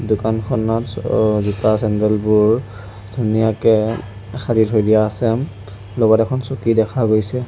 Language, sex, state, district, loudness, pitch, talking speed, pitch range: Assamese, male, Assam, Sonitpur, -17 LUFS, 110 Hz, 110 wpm, 105-115 Hz